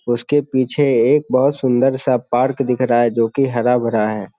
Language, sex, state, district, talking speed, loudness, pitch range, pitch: Hindi, male, Bihar, Jamui, 190 wpm, -16 LUFS, 120-135 Hz, 125 Hz